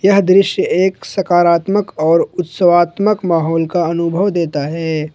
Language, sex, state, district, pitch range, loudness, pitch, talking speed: Hindi, male, Jharkhand, Ranchi, 165-195 Hz, -14 LUFS, 175 Hz, 130 wpm